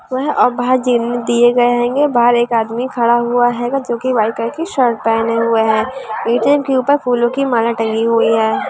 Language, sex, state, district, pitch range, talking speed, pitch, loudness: Hindi, female, Bihar, Sitamarhi, 230-255 Hz, 195 wpm, 240 Hz, -14 LUFS